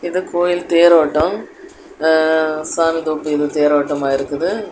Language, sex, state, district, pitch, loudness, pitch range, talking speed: Tamil, female, Tamil Nadu, Kanyakumari, 160 Hz, -16 LUFS, 150-175 Hz, 100 wpm